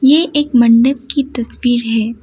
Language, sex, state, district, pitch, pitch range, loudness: Hindi, female, Assam, Kamrup Metropolitan, 250 Hz, 235-280 Hz, -13 LUFS